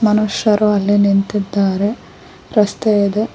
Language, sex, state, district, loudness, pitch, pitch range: Kannada, female, Karnataka, Koppal, -15 LUFS, 205 Hz, 200-215 Hz